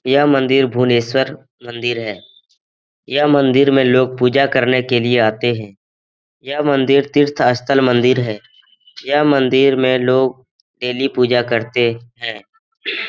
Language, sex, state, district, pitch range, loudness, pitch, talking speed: Hindi, male, Bihar, Jahanabad, 120-135 Hz, -15 LUFS, 130 Hz, 135 wpm